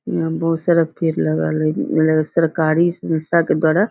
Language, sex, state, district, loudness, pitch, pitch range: Hindi, female, Bihar, Muzaffarpur, -18 LUFS, 160 Hz, 155-165 Hz